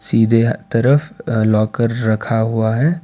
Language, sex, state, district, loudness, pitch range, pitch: Hindi, male, Karnataka, Bangalore, -16 LUFS, 110-130 Hz, 115 Hz